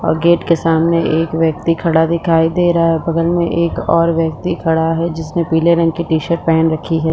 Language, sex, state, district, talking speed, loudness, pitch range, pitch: Hindi, female, Jharkhand, Sahebganj, 225 wpm, -15 LUFS, 160-170 Hz, 165 Hz